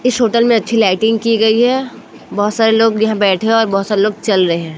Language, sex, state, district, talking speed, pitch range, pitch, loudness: Hindi, female, Chhattisgarh, Raipur, 250 wpm, 205-230 Hz, 220 Hz, -13 LUFS